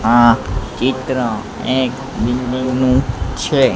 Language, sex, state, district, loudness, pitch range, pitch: Gujarati, male, Gujarat, Gandhinagar, -17 LUFS, 115-130 Hz, 125 Hz